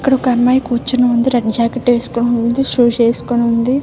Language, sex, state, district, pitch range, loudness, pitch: Telugu, female, Andhra Pradesh, Visakhapatnam, 235-250 Hz, -14 LUFS, 245 Hz